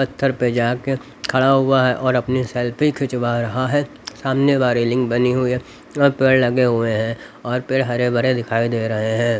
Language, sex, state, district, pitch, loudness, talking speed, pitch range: Hindi, male, Haryana, Rohtak, 125 Hz, -19 LUFS, 200 wpm, 120-135 Hz